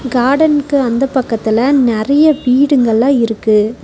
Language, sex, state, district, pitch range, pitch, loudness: Tamil, female, Tamil Nadu, Nilgiris, 230-280 Hz, 260 Hz, -12 LUFS